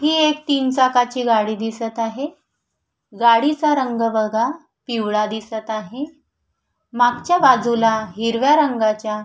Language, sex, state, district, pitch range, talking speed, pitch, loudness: Marathi, female, Maharashtra, Sindhudurg, 220-285 Hz, 110 wpm, 240 Hz, -18 LUFS